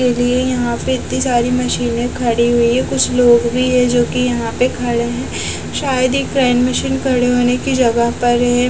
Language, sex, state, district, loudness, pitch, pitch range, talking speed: Hindi, female, Bihar, West Champaran, -15 LUFS, 245 Hz, 240-250 Hz, 205 wpm